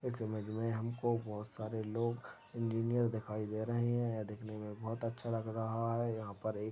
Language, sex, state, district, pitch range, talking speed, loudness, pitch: Hindi, male, Chhattisgarh, Balrampur, 110-115 Hz, 225 wpm, -39 LUFS, 115 Hz